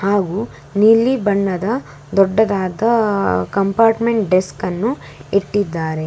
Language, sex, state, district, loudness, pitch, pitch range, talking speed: Kannada, female, Karnataka, Bangalore, -17 LUFS, 200 Hz, 185-220 Hz, 80 wpm